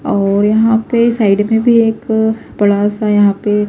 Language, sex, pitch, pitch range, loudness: Urdu, female, 215 Hz, 205-225 Hz, -12 LUFS